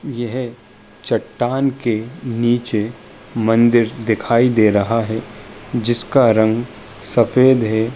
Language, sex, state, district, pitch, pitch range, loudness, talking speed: Hindi, male, Uttar Pradesh, Jalaun, 115 Hz, 110-120 Hz, -17 LUFS, 100 wpm